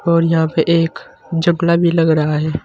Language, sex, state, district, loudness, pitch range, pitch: Hindi, male, Uttar Pradesh, Saharanpur, -15 LUFS, 160-170 Hz, 165 Hz